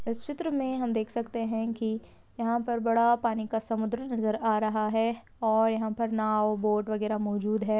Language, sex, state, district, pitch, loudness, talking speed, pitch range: Hindi, female, Uttar Pradesh, Jyotiba Phule Nagar, 225 Hz, -29 LUFS, 200 wpm, 215-235 Hz